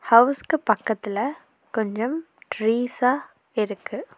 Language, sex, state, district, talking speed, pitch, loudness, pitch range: Tamil, female, Tamil Nadu, Nilgiris, 70 wpm, 235 Hz, -24 LUFS, 220-275 Hz